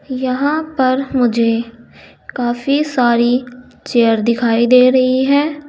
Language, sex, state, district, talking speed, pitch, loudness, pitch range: Hindi, female, Uttar Pradesh, Saharanpur, 105 wpm, 250 Hz, -14 LUFS, 235-275 Hz